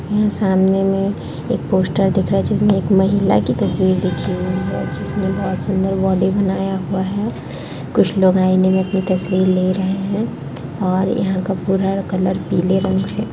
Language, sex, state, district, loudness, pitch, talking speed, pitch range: Hindi, female, Bihar, Kishanganj, -17 LUFS, 190 Hz, 180 wpm, 185-195 Hz